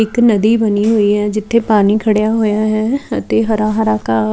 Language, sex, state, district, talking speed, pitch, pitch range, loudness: Punjabi, female, Chandigarh, Chandigarh, 210 wpm, 215 Hz, 210-225 Hz, -14 LUFS